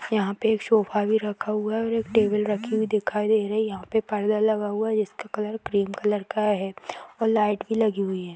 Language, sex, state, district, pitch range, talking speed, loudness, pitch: Hindi, female, Uttar Pradesh, Hamirpur, 205-220 Hz, 250 wpm, -25 LUFS, 215 Hz